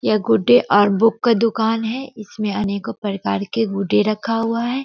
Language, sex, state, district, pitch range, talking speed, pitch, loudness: Hindi, female, Bihar, Sitamarhi, 200-225 Hz, 185 wpm, 215 Hz, -18 LUFS